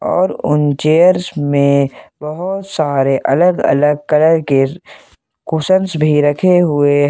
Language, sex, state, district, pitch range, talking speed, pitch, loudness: Hindi, male, Jharkhand, Ranchi, 145-175 Hz, 120 wpm, 150 Hz, -13 LUFS